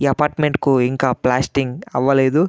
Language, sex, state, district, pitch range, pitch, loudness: Telugu, male, Andhra Pradesh, Anantapur, 130-150 Hz, 135 Hz, -18 LUFS